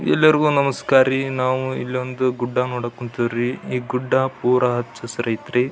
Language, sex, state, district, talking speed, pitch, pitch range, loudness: Kannada, male, Karnataka, Belgaum, 155 wpm, 125 Hz, 120-130 Hz, -20 LUFS